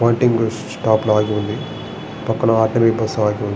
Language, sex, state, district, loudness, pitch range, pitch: Telugu, male, Andhra Pradesh, Srikakulam, -18 LUFS, 105-115 Hz, 110 Hz